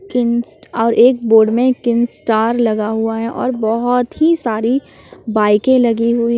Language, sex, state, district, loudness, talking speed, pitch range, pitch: Hindi, female, Jharkhand, Palamu, -15 LUFS, 150 wpm, 225-245 Hz, 235 Hz